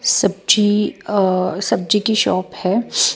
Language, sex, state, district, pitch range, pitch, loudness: Hindi, female, Bihar, Patna, 185-220 Hz, 210 Hz, -17 LUFS